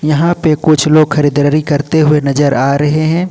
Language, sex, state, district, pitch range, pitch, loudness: Hindi, male, Jharkhand, Ranchi, 145-155 Hz, 150 Hz, -11 LUFS